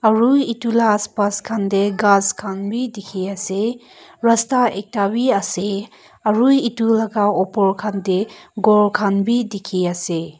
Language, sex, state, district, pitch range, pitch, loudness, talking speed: Nagamese, female, Nagaland, Kohima, 195-230 Hz, 210 Hz, -18 LUFS, 155 wpm